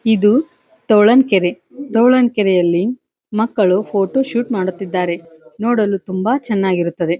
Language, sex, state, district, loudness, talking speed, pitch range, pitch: Kannada, female, Karnataka, Dharwad, -16 LUFS, 85 wpm, 185-240 Hz, 210 Hz